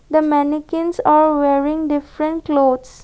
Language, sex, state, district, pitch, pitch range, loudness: English, female, Assam, Kamrup Metropolitan, 300 Hz, 285-310 Hz, -17 LUFS